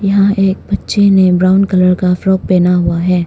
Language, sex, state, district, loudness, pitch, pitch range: Hindi, female, Arunachal Pradesh, Longding, -11 LUFS, 185 Hz, 180-195 Hz